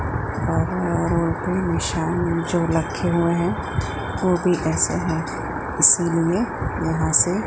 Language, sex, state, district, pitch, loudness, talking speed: Hindi, female, Gujarat, Gandhinagar, 170 Hz, -21 LUFS, 120 wpm